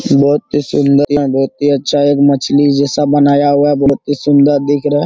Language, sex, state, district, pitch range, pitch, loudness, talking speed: Hindi, male, Jharkhand, Sahebganj, 140-145 Hz, 145 Hz, -12 LUFS, 225 wpm